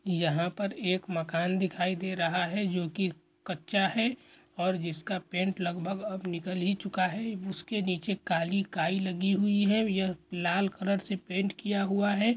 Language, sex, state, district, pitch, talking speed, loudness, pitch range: Hindi, male, Chhattisgarh, Korba, 190 Hz, 175 wpm, -30 LUFS, 180-200 Hz